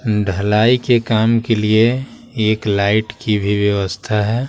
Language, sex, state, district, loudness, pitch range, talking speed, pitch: Hindi, male, Bihar, Patna, -16 LUFS, 105-115 Hz, 145 wpm, 110 Hz